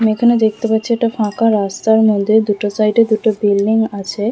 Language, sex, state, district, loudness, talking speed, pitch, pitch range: Bengali, female, West Bengal, Kolkata, -14 LUFS, 210 wpm, 220 Hz, 205-225 Hz